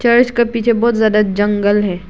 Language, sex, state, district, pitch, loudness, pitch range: Hindi, female, Arunachal Pradesh, Lower Dibang Valley, 220 Hz, -14 LUFS, 205-235 Hz